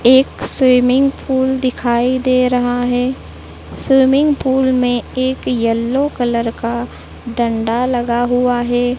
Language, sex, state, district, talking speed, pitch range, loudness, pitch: Hindi, female, Madhya Pradesh, Dhar, 120 wpm, 240-260 Hz, -15 LUFS, 250 Hz